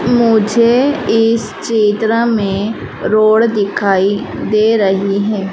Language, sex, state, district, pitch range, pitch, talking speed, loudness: Hindi, female, Madhya Pradesh, Dhar, 205-230 Hz, 215 Hz, 100 wpm, -13 LUFS